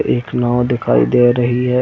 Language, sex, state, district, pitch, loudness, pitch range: Hindi, male, Chhattisgarh, Bilaspur, 120 Hz, -15 LUFS, 120-125 Hz